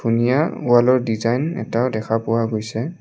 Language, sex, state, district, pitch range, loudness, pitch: Assamese, male, Assam, Kamrup Metropolitan, 115-130 Hz, -19 LUFS, 115 Hz